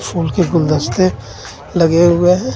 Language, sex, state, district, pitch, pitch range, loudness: Hindi, male, Jharkhand, Ranchi, 170 Hz, 160-180 Hz, -14 LUFS